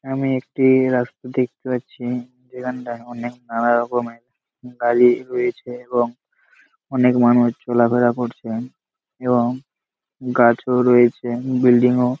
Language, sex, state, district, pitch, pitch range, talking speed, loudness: Bengali, male, West Bengal, Malda, 125 Hz, 120-130 Hz, 100 wpm, -19 LUFS